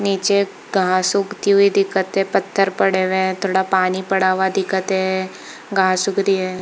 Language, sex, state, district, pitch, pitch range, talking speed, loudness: Hindi, female, Chhattisgarh, Bilaspur, 190 Hz, 190-195 Hz, 180 wpm, -18 LUFS